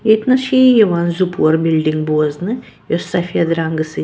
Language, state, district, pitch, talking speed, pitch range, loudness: Kashmiri, Punjab, Kapurthala, 170 Hz, 165 wpm, 155-220 Hz, -15 LUFS